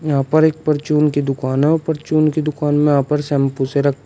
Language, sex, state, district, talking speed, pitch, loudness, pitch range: Hindi, male, Uttar Pradesh, Shamli, 235 wpm, 150 Hz, -17 LUFS, 140-155 Hz